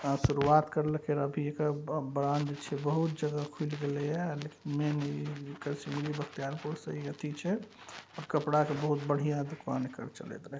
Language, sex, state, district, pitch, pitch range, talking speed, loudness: Maithili, male, Bihar, Saharsa, 150 Hz, 145-150 Hz, 160 wpm, -33 LUFS